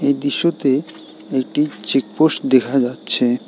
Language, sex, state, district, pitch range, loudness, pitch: Bengali, male, West Bengal, Alipurduar, 130-160 Hz, -18 LUFS, 135 Hz